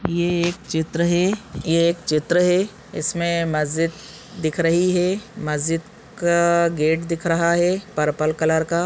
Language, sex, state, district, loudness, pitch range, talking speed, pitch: Hindi, male, Chhattisgarh, Balrampur, -21 LUFS, 160-175 Hz, 150 wpm, 170 Hz